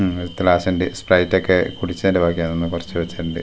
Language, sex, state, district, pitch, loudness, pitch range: Malayalam, male, Kerala, Wayanad, 90 Hz, -19 LUFS, 85-95 Hz